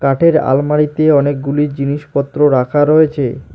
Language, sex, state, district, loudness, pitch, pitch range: Bengali, male, West Bengal, Alipurduar, -13 LUFS, 145 Hz, 140-150 Hz